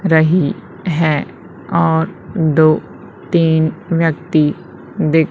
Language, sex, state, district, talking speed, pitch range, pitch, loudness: Hindi, female, Madhya Pradesh, Umaria, 80 wpm, 155-170 Hz, 160 Hz, -15 LUFS